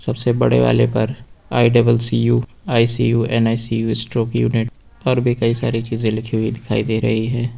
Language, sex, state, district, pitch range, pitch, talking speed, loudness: Hindi, male, Uttar Pradesh, Lucknow, 110-120 Hz, 115 Hz, 180 wpm, -18 LUFS